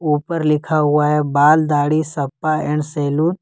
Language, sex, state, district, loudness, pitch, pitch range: Hindi, male, Jharkhand, Ranchi, -17 LUFS, 150 Hz, 145-155 Hz